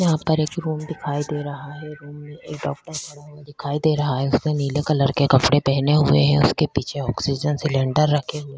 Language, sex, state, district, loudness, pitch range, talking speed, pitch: Hindi, female, Chhattisgarh, Kabirdham, -21 LUFS, 140-150 Hz, 225 wpm, 145 Hz